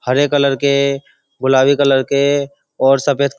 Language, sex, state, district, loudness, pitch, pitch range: Hindi, male, Uttar Pradesh, Jyotiba Phule Nagar, -14 LUFS, 140 Hz, 135-140 Hz